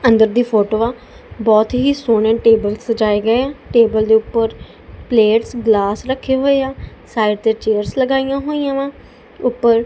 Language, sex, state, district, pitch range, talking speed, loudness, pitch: Punjabi, female, Punjab, Kapurthala, 220-260 Hz, 160 wpm, -16 LUFS, 230 Hz